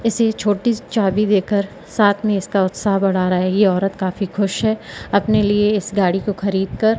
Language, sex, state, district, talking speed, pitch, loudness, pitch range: Hindi, female, Madhya Pradesh, Katni, 215 wpm, 200 Hz, -18 LUFS, 195-210 Hz